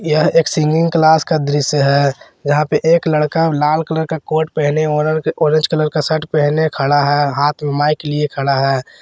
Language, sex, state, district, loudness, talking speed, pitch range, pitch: Hindi, male, Jharkhand, Garhwa, -15 LUFS, 200 wpm, 145-160 Hz, 150 Hz